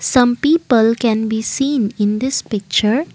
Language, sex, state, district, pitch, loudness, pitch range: English, female, Assam, Kamrup Metropolitan, 230 Hz, -16 LUFS, 220-260 Hz